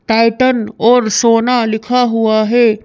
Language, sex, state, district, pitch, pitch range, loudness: Hindi, female, Madhya Pradesh, Bhopal, 230 Hz, 220-245 Hz, -12 LUFS